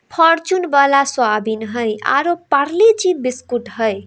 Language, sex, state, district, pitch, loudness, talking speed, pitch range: Hindi, female, Bihar, Darbhanga, 275 Hz, -16 LUFS, 120 wpm, 230-340 Hz